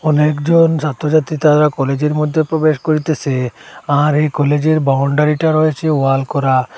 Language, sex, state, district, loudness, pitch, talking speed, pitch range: Bengali, male, Assam, Hailakandi, -14 LUFS, 150 Hz, 125 wpm, 140-155 Hz